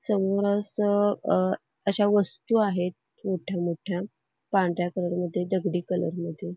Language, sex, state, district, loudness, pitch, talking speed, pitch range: Marathi, female, Karnataka, Belgaum, -27 LUFS, 185 Hz, 100 wpm, 175-205 Hz